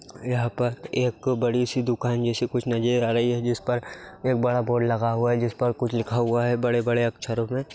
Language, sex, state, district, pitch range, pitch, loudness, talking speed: Hindi, male, Bihar, Saharsa, 120-125 Hz, 120 Hz, -25 LUFS, 225 wpm